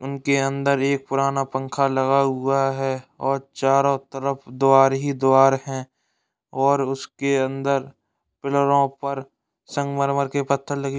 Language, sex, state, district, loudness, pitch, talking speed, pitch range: Hindi, male, Uttar Pradesh, Ghazipur, -21 LUFS, 135 Hz, 135 wpm, 135-140 Hz